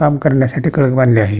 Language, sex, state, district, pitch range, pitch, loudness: Marathi, male, Maharashtra, Pune, 125-150 Hz, 135 Hz, -13 LUFS